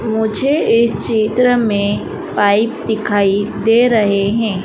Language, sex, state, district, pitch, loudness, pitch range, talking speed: Hindi, female, Madhya Pradesh, Dhar, 220 Hz, -15 LUFS, 205-230 Hz, 115 wpm